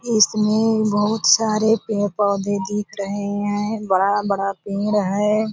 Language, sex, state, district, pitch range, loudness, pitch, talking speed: Hindi, female, Bihar, Purnia, 200-215 Hz, -19 LUFS, 210 Hz, 110 wpm